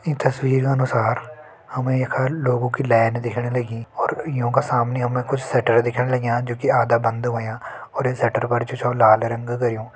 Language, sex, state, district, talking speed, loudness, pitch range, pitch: Hindi, male, Uttarakhand, Tehri Garhwal, 195 wpm, -21 LUFS, 115-130 Hz, 125 Hz